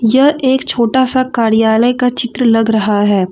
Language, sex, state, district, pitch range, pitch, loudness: Hindi, female, Jharkhand, Deoghar, 225-255 Hz, 235 Hz, -12 LUFS